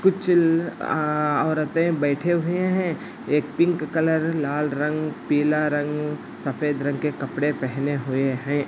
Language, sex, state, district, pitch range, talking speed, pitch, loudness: Hindi, male, Andhra Pradesh, Anantapur, 145-165 Hz, 145 wpm, 150 Hz, -23 LUFS